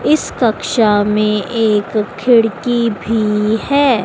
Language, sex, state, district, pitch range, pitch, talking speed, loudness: Hindi, female, Madhya Pradesh, Dhar, 210-240 Hz, 220 Hz, 105 wpm, -14 LUFS